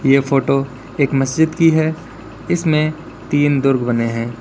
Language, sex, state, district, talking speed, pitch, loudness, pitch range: Hindi, male, Uttar Pradesh, Lalitpur, 150 wpm, 140 Hz, -17 LUFS, 130-155 Hz